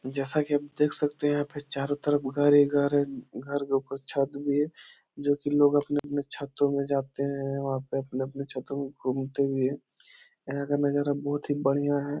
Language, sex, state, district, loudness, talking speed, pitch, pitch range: Hindi, male, Bihar, Jahanabad, -28 LUFS, 205 wpm, 140 Hz, 135-145 Hz